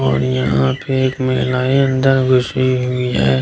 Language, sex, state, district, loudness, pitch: Hindi, male, Bihar, Kishanganj, -16 LUFS, 125 Hz